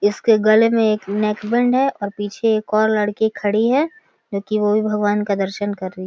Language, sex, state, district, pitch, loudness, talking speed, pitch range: Maithili, female, Bihar, Samastipur, 210 Hz, -18 LUFS, 225 wpm, 205-220 Hz